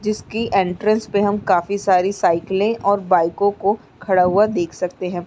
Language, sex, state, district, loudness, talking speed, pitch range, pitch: Hindi, female, Bihar, Araria, -18 LUFS, 170 wpm, 180-205 Hz, 195 Hz